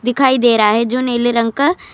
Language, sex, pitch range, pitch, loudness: Urdu, female, 235-260 Hz, 245 Hz, -14 LUFS